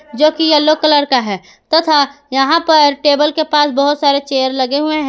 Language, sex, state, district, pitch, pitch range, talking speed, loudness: Hindi, female, Jharkhand, Garhwa, 290 Hz, 275-305 Hz, 210 wpm, -13 LUFS